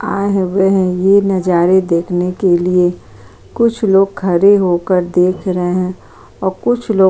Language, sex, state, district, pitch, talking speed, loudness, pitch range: Hindi, female, Uttar Pradesh, Jyotiba Phule Nagar, 185 Hz, 145 wpm, -14 LUFS, 180-195 Hz